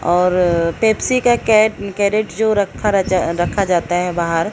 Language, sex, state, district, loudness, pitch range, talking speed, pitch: Hindi, female, Odisha, Sambalpur, -16 LUFS, 175-215 Hz, 160 wpm, 195 Hz